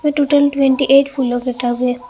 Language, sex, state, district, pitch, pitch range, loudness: Hindi, female, Assam, Hailakandi, 270 Hz, 250-285 Hz, -15 LUFS